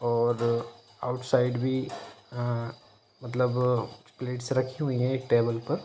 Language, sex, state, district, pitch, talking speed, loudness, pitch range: Hindi, male, Jharkhand, Jamtara, 120 Hz, 145 wpm, -28 LUFS, 120-125 Hz